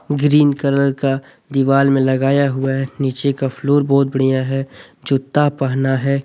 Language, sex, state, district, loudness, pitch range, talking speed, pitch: Hindi, male, Jharkhand, Deoghar, -17 LUFS, 135-140 Hz, 165 wpm, 135 Hz